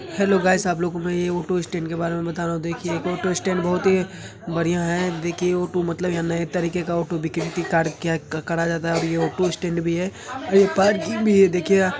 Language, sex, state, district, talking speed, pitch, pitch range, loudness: Hindi, male, Uttar Pradesh, Hamirpur, 235 wpm, 175 Hz, 170-180 Hz, -22 LUFS